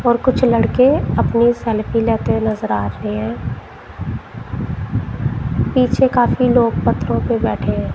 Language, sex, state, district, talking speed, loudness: Hindi, female, Punjab, Kapurthala, 135 wpm, -17 LUFS